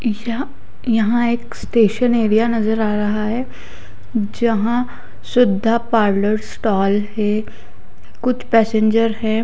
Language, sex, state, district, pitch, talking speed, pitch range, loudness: Hindi, female, Odisha, Khordha, 225 Hz, 100 wpm, 210-235 Hz, -18 LUFS